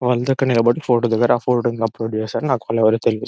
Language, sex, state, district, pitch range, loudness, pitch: Telugu, male, Telangana, Nalgonda, 115-125 Hz, -18 LUFS, 120 Hz